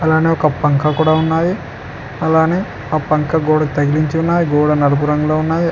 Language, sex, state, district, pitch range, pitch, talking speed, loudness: Telugu, male, Telangana, Mahabubabad, 150-160 Hz, 155 Hz, 160 wpm, -15 LUFS